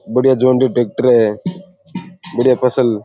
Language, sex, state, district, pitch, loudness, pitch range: Rajasthani, male, Rajasthan, Churu, 130 Hz, -14 LUFS, 120-180 Hz